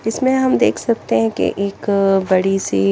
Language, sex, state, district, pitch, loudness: Hindi, female, Chandigarh, Chandigarh, 195 Hz, -17 LUFS